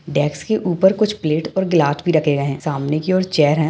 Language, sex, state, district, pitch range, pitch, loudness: Hindi, male, Bihar, Darbhanga, 145-185 Hz, 155 Hz, -18 LUFS